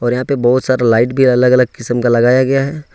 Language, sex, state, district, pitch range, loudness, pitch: Hindi, male, Jharkhand, Ranchi, 120-130 Hz, -13 LUFS, 125 Hz